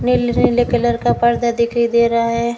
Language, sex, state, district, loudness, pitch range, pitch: Hindi, female, Rajasthan, Bikaner, -16 LUFS, 235-240 Hz, 235 Hz